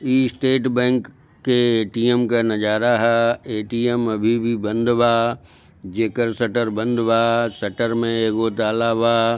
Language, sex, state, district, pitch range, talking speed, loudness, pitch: Bhojpuri, male, Bihar, Gopalganj, 115-120 Hz, 140 wpm, -19 LUFS, 115 Hz